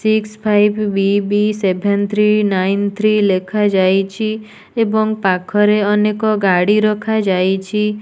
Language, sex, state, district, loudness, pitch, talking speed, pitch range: Odia, female, Odisha, Nuapada, -15 LUFS, 210 Hz, 110 wpm, 195-215 Hz